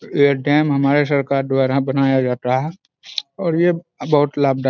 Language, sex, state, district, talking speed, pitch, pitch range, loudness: Hindi, male, Bihar, Araria, 165 wpm, 140 Hz, 135-150 Hz, -18 LUFS